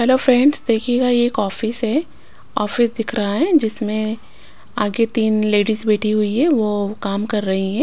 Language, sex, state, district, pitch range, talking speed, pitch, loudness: Hindi, female, Punjab, Pathankot, 210-245 Hz, 175 wpm, 220 Hz, -18 LUFS